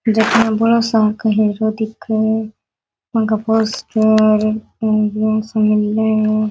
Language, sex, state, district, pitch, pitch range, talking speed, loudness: Rajasthani, female, Rajasthan, Nagaur, 220 Hz, 215-220 Hz, 90 wpm, -16 LUFS